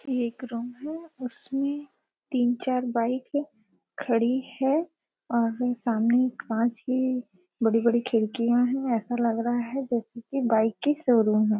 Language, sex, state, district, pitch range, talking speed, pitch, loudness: Hindi, female, Chhattisgarh, Bastar, 230-265 Hz, 135 wpm, 245 Hz, -26 LUFS